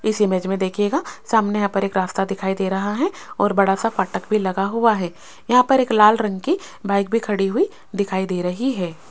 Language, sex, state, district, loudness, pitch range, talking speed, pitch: Hindi, female, Rajasthan, Jaipur, -20 LUFS, 190-225 Hz, 230 wpm, 200 Hz